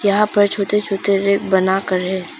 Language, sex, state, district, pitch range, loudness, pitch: Hindi, female, Arunachal Pradesh, Papum Pare, 190-205 Hz, -17 LUFS, 200 Hz